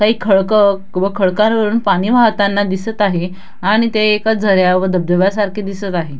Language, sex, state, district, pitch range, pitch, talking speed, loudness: Marathi, female, Maharashtra, Dhule, 190-215 Hz, 200 Hz, 165 wpm, -14 LUFS